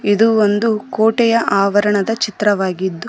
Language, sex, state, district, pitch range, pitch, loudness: Kannada, female, Karnataka, Koppal, 200-225 Hz, 210 Hz, -15 LUFS